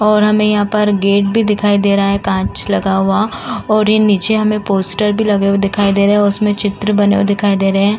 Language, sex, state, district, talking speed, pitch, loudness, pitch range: Hindi, female, Uttar Pradesh, Jalaun, 235 wpm, 205 Hz, -13 LUFS, 200-210 Hz